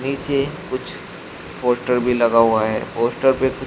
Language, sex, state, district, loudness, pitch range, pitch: Hindi, male, Uttar Pradesh, Shamli, -19 LUFS, 120-135 Hz, 125 Hz